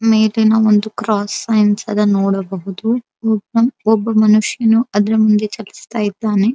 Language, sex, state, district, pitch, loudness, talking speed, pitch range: Kannada, female, Karnataka, Dharwad, 215 Hz, -15 LUFS, 120 wpm, 210-225 Hz